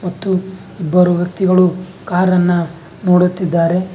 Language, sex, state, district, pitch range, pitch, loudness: Kannada, male, Karnataka, Bangalore, 175-185 Hz, 180 Hz, -15 LUFS